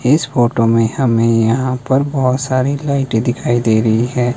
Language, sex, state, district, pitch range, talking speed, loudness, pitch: Hindi, male, Himachal Pradesh, Shimla, 115-135 Hz, 180 wpm, -15 LUFS, 125 Hz